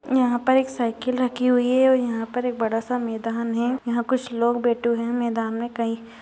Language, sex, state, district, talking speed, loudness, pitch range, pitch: Hindi, female, Uttar Pradesh, Ghazipur, 230 wpm, -23 LUFS, 230-250 Hz, 240 Hz